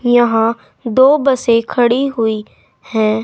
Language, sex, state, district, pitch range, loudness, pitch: Hindi, female, Uttar Pradesh, Saharanpur, 225-255 Hz, -14 LUFS, 235 Hz